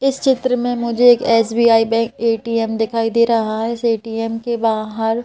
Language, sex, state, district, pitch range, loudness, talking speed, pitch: Hindi, female, Madhya Pradesh, Bhopal, 225-235 Hz, -17 LUFS, 185 wpm, 230 Hz